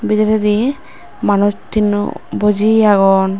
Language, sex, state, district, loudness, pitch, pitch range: Chakma, female, Tripura, West Tripura, -14 LUFS, 210 Hz, 205-215 Hz